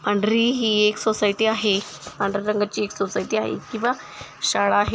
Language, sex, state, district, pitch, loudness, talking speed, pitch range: Marathi, female, Maharashtra, Nagpur, 210 Hz, -22 LUFS, 155 wpm, 205-220 Hz